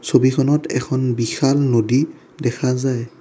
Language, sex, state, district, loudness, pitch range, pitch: Assamese, male, Assam, Kamrup Metropolitan, -19 LUFS, 120-135 Hz, 130 Hz